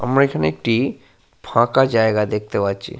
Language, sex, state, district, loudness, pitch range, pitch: Bengali, male, Jharkhand, Sahebganj, -18 LUFS, 105-125 Hz, 115 Hz